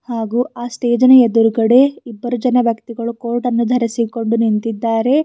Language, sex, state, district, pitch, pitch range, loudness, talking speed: Kannada, female, Karnataka, Bidar, 235 Hz, 230-245 Hz, -15 LUFS, 135 wpm